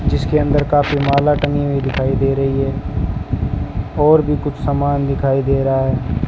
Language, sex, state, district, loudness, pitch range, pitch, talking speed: Hindi, male, Rajasthan, Bikaner, -17 LUFS, 135-145 Hz, 140 Hz, 160 wpm